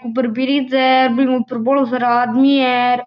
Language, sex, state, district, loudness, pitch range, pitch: Marwari, male, Rajasthan, Churu, -15 LUFS, 245-265 Hz, 255 Hz